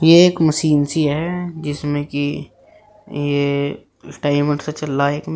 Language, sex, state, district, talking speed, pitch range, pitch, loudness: Hindi, male, Uttar Pradesh, Shamli, 180 wpm, 145-160 Hz, 150 Hz, -18 LUFS